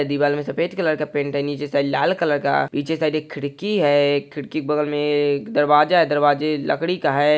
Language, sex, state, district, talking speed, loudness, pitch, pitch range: Hindi, male, Maharashtra, Pune, 225 wpm, -20 LUFS, 145 Hz, 145-155 Hz